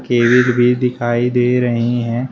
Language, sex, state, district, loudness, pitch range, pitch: Hindi, male, Uttar Pradesh, Shamli, -15 LUFS, 120-125 Hz, 125 Hz